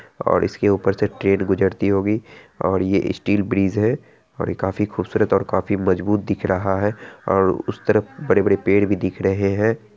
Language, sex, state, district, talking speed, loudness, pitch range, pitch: Hindi, male, Bihar, Araria, 185 wpm, -20 LUFS, 95-105 Hz, 100 Hz